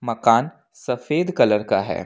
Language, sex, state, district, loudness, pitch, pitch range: Hindi, male, Jharkhand, Ranchi, -20 LUFS, 125 Hz, 115-150 Hz